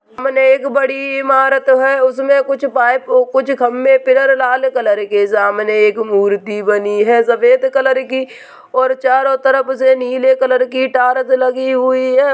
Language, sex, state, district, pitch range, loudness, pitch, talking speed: Hindi, male, Bihar, Purnia, 245-265 Hz, -13 LUFS, 260 Hz, 160 wpm